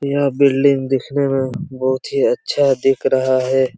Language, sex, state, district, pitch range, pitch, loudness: Hindi, male, Chhattisgarh, Raigarh, 130-140 Hz, 135 Hz, -17 LUFS